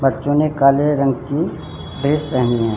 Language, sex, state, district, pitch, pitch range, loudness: Hindi, male, Uttarakhand, Tehri Garhwal, 140 Hz, 130-145 Hz, -17 LUFS